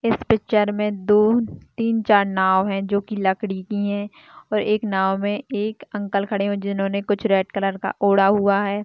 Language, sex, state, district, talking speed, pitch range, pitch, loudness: Hindi, female, Chhattisgarh, Jashpur, 195 wpm, 195-210 Hz, 205 Hz, -21 LUFS